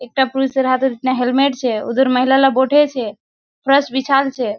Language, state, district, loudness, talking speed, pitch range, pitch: Surjapuri, Bihar, Kishanganj, -16 LUFS, 195 wpm, 250-270 Hz, 265 Hz